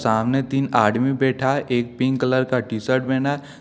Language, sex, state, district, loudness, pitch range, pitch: Hindi, male, Jharkhand, Deoghar, -21 LUFS, 120-135 Hz, 130 Hz